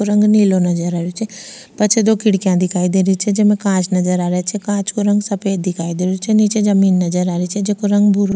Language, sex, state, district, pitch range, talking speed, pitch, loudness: Rajasthani, female, Rajasthan, Nagaur, 180-205 Hz, 260 wpm, 195 Hz, -16 LUFS